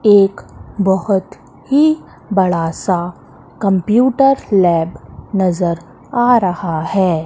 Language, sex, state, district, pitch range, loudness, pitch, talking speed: Hindi, female, Madhya Pradesh, Katni, 170-210 Hz, -15 LUFS, 190 Hz, 90 wpm